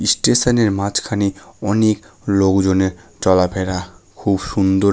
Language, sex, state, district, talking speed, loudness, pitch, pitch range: Bengali, male, West Bengal, Malda, 95 wpm, -17 LUFS, 100 Hz, 95-105 Hz